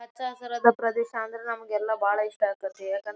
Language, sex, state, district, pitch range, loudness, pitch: Kannada, female, Karnataka, Raichur, 210-235 Hz, -27 LUFS, 225 Hz